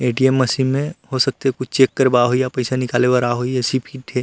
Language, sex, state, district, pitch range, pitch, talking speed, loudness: Chhattisgarhi, male, Chhattisgarh, Rajnandgaon, 125-130 Hz, 130 Hz, 255 wpm, -18 LUFS